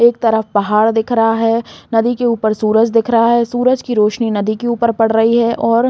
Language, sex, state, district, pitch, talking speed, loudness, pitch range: Hindi, female, Chhattisgarh, Balrampur, 230 Hz, 245 wpm, -14 LUFS, 220-235 Hz